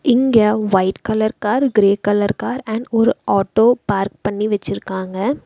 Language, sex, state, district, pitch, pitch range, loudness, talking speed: Tamil, female, Tamil Nadu, Nilgiris, 210 Hz, 200-235 Hz, -17 LUFS, 145 wpm